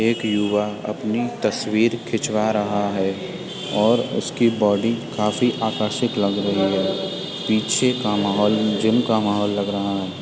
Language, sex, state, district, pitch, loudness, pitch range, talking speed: Hindi, male, Uttar Pradesh, Etah, 105 Hz, -21 LUFS, 100-110 Hz, 140 wpm